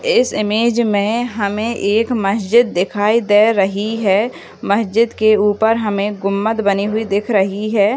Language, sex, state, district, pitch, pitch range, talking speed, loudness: Hindi, female, Maharashtra, Solapur, 210 Hz, 200-225 Hz, 150 wpm, -16 LUFS